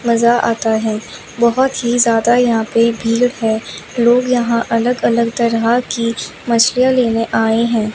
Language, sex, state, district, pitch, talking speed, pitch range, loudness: Hindi, female, Chandigarh, Chandigarh, 235 Hz, 150 wpm, 230-240 Hz, -15 LUFS